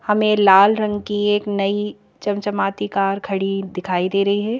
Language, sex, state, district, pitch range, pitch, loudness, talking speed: Hindi, female, Madhya Pradesh, Bhopal, 195-205 Hz, 200 Hz, -19 LUFS, 170 wpm